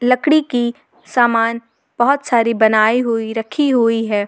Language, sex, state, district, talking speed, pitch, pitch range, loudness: Hindi, female, Jharkhand, Garhwa, 140 wpm, 235 Hz, 225-250 Hz, -16 LUFS